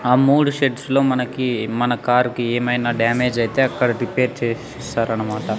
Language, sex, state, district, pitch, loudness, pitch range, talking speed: Telugu, male, Andhra Pradesh, Sri Satya Sai, 125 Hz, -19 LUFS, 115-130 Hz, 160 wpm